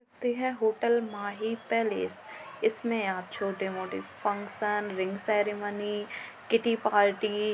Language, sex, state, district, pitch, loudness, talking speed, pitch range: Hindi, female, Uttar Pradesh, Jalaun, 210 Hz, -30 LUFS, 105 wpm, 205-230 Hz